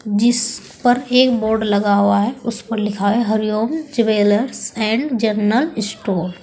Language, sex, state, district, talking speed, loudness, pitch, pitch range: Hindi, female, Uttar Pradesh, Saharanpur, 170 wpm, -17 LUFS, 220 Hz, 210-240 Hz